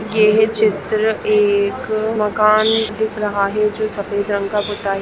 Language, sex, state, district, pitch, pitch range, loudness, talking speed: Hindi, female, Bihar, Lakhisarai, 215 Hz, 205-215 Hz, -17 LUFS, 155 wpm